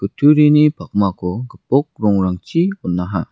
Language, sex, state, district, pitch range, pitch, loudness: Garo, male, Meghalaya, West Garo Hills, 95-150 Hz, 115 Hz, -16 LUFS